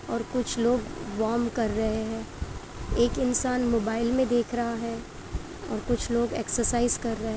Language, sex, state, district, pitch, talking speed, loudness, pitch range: Hindi, female, Uttar Pradesh, Jyotiba Phule Nagar, 235 Hz, 170 wpm, -27 LUFS, 225-240 Hz